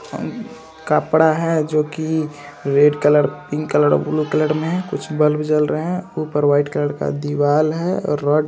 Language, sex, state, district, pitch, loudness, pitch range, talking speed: Hindi, male, Bihar, Saharsa, 150 Hz, -18 LUFS, 145-160 Hz, 185 wpm